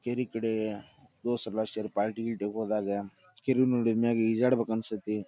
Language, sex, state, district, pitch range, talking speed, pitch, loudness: Kannada, male, Karnataka, Dharwad, 105-120 Hz, 150 wpm, 110 Hz, -30 LUFS